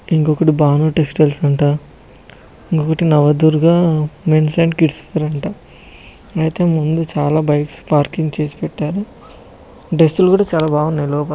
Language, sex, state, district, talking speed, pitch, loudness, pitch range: Telugu, male, Telangana, Nalgonda, 130 wpm, 155 Hz, -15 LUFS, 150-165 Hz